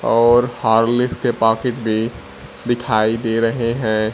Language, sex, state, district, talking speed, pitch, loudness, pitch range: Hindi, male, Bihar, Kaimur, 130 wpm, 115 Hz, -17 LUFS, 110-120 Hz